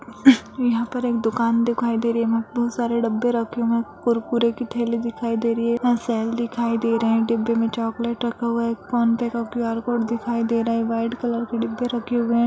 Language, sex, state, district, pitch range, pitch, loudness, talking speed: Hindi, female, Bihar, Jahanabad, 230-235 Hz, 235 Hz, -22 LUFS, 240 wpm